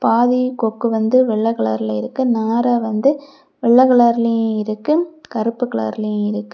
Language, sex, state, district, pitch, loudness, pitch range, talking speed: Tamil, female, Tamil Nadu, Kanyakumari, 230 Hz, -17 LUFS, 215-255 Hz, 130 wpm